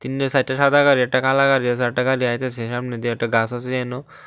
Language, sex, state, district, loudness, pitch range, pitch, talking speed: Bengali, male, Tripura, West Tripura, -19 LUFS, 120-135 Hz, 125 Hz, 255 wpm